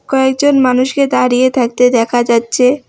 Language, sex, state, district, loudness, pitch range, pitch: Bengali, female, West Bengal, Alipurduar, -12 LUFS, 245-265 Hz, 250 Hz